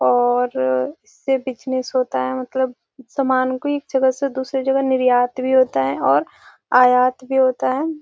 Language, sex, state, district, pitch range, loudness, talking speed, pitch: Hindi, female, Bihar, Gopalganj, 250-265 Hz, -19 LUFS, 165 wpm, 260 Hz